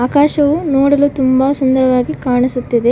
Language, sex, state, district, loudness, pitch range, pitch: Kannada, female, Karnataka, Koppal, -13 LUFS, 250-285 Hz, 260 Hz